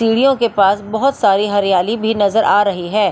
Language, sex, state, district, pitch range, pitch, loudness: Hindi, female, Delhi, New Delhi, 200-225 Hz, 210 Hz, -14 LUFS